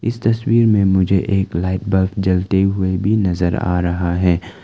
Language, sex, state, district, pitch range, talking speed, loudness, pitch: Hindi, male, Arunachal Pradesh, Lower Dibang Valley, 90-100 Hz, 170 wpm, -17 LUFS, 95 Hz